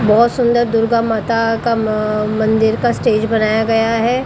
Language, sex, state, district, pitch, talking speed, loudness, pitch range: Hindi, female, Maharashtra, Mumbai Suburban, 225 Hz, 170 wpm, -15 LUFS, 220-230 Hz